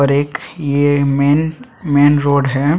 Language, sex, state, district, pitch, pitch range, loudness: Hindi, male, Chhattisgarh, Sukma, 145 Hz, 140-145 Hz, -14 LUFS